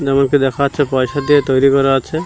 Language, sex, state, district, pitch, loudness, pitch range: Bengali, male, Odisha, Malkangiri, 140 Hz, -14 LUFS, 135-145 Hz